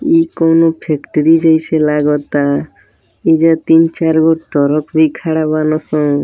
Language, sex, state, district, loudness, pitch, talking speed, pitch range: Bhojpuri, male, Uttar Pradesh, Deoria, -13 LUFS, 160 Hz, 125 wpm, 150-165 Hz